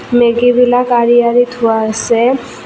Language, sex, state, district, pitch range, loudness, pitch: Assamese, female, Assam, Kamrup Metropolitan, 235-245 Hz, -11 LUFS, 240 Hz